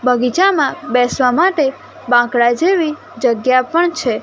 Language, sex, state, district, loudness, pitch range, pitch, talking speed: Gujarati, female, Gujarat, Gandhinagar, -15 LUFS, 245-325 Hz, 255 Hz, 115 wpm